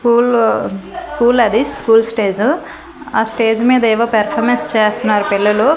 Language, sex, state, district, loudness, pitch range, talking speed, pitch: Telugu, female, Andhra Pradesh, Manyam, -14 LUFS, 215-240 Hz, 125 wpm, 225 Hz